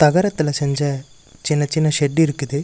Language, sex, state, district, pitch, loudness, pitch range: Tamil, male, Tamil Nadu, Nilgiris, 145 Hz, -19 LUFS, 140-155 Hz